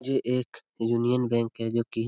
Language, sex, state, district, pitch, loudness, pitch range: Hindi, male, Bihar, Lakhisarai, 120 Hz, -27 LUFS, 115-125 Hz